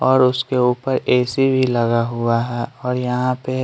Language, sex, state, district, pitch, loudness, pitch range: Hindi, male, Bihar, Patna, 125 Hz, -18 LUFS, 120-130 Hz